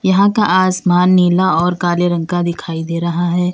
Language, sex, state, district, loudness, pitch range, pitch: Hindi, female, Uttar Pradesh, Lalitpur, -14 LUFS, 175-185 Hz, 175 Hz